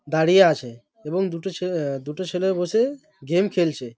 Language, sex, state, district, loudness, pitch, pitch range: Bengali, male, West Bengal, Malda, -22 LUFS, 175 Hz, 150-190 Hz